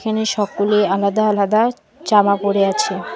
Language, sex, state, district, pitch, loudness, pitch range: Bengali, female, West Bengal, Alipurduar, 205 Hz, -17 LUFS, 200-220 Hz